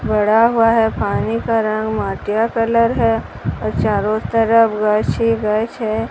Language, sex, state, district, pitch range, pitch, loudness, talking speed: Hindi, female, Odisha, Sambalpur, 215-230 Hz, 225 Hz, -17 LUFS, 155 wpm